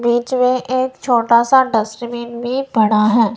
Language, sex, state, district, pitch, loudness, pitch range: Hindi, female, Punjab, Kapurthala, 240 Hz, -16 LUFS, 230-255 Hz